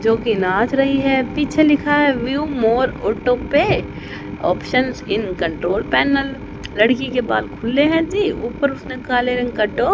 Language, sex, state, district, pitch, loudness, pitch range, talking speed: Hindi, female, Haryana, Jhajjar, 255 Hz, -18 LUFS, 230-280 Hz, 165 wpm